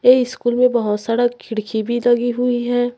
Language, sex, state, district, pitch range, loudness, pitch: Hindi, female, Chhattisgarh, Raipur, 235-245 Hz, -18 LUFS, 240 Hz